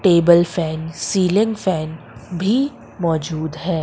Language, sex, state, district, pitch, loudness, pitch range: Hindi, female, Madhya Pradesh, Umaria, 170 Hz, -19 LUFS, 160-190 Hz